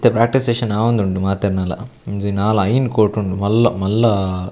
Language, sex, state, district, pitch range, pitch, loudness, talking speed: Tulu, male, Karnataka, Dakshina Kannada, 95-115 Hz, 105 Hz, -17 LUFS, 170 wpm